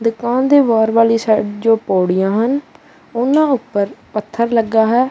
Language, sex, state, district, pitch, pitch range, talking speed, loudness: Punjabi, male, Punjab, Kapurthala, 230 Hz, 215-240 Hz, 150 wpm, -15 LUFS